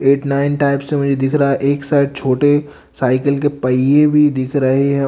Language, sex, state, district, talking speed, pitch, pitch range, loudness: Hindi, male, Bihar, Katihar, 210 wpm, 140 Hz, 135-145 Hz, -15 LUFS